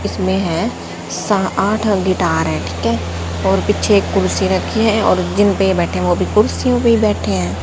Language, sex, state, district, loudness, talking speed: Hindi, female, Haryana, Charkhi Dadri, -16 LUFS, 205 wpm